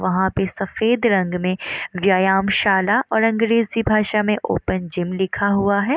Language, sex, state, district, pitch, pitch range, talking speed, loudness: Hindi, female, Bihar, Gopalganj, 200 Hz, 190-215 Hz, 150 wpm, -19 LUFS